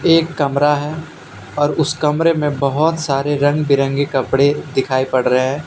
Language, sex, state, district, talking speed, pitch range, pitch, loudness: Hindi, male, Jharkhand, Deoghar, 160 wpm, 135-150 Hz, 145 Hz, -16 LUFS